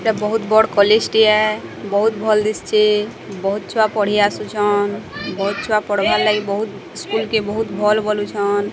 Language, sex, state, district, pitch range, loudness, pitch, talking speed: Odia, female, Odisha, Sambalpur, 205-215 Hz, -17 LUFS, 210 Hz, 150 wpm